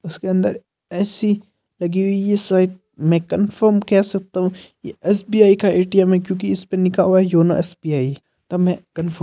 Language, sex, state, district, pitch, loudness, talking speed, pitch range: Hindi, male, Rajasthan, Nagaur, 185 Hz, -18 LUFS, 210 wpm, 180-195 Hz